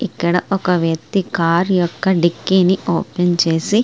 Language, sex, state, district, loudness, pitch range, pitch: Telugu, female, Andhra Pradesh, Srikakulam, -17 LUFS, 170-190 Hz, 180 Hz